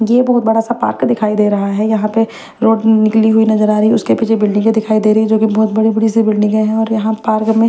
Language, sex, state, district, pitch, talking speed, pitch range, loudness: Hindi, female, Maharashtra, Mumbai Suburban, 220 Hz, 290 wpm, 215-225 Hz, -13 LUFS